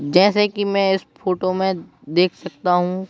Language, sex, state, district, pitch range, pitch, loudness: Hindi, male, Madhya Pradesh, Bhopal, 180-195 Hz, 185 Hz, -19 LUFS